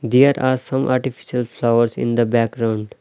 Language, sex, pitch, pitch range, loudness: English, male, 120 Hz, 115-130 Hz, -18 LUFS